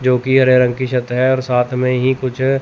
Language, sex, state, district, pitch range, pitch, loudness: Hindi, male, Chandigarh, Chandigarh, 125-130 Hz, 130 Hz, -15 LUFS